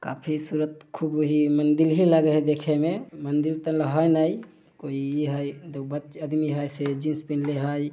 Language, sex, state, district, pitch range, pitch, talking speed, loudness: Maithili, male, Bihar, Samastipur, 145-155 Hz, 150 Hz, 175 wpm, -25 LUFS